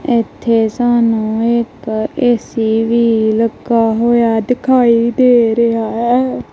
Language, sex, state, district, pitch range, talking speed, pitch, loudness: Punjabi, female, Punjab, Kapurthala, 225-240 Hz, 100 wpm, 235 Hz, -13 LUFS